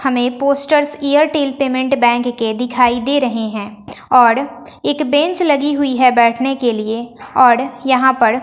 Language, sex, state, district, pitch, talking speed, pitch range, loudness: Hindi, female, Bihar, West Champaran, 255 Hz, 155 wpm, 240-280 Hz, -14 LUFS